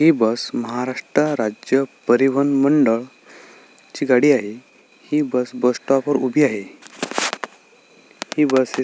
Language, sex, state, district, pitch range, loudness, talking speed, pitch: Marathi, male, Maharashtra, Sindhudurg, 125-140 Hz, -19 LUFS, 120 wpm, 130 Hz